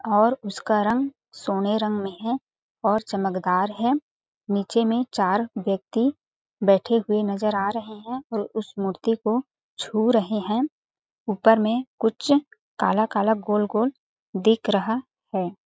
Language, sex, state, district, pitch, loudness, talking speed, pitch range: Hindi, female, Chhattisgarh, Balrampur, 215 Hz, -24 LUFS, 135 wpm, 200-230 Hz